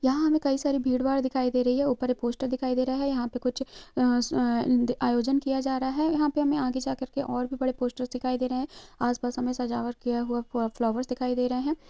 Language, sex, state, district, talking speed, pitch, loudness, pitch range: Hindi, female, Chhattisgarh, Sukma, 245 wpm, 255 Hz, -27 LUFS, 245-270 Hz